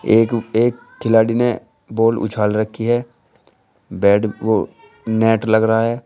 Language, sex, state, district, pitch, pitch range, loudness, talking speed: Hindi, male, Uttar Pradesh, Shamli, 110 Hz, 110-115 Hz, -17 LUFS, 130 wpm